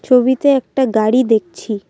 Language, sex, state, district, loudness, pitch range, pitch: Bengali, female, Assam, Kamrup Metropolitan, -15 LUFS, 215-260 Hz, 250 Hz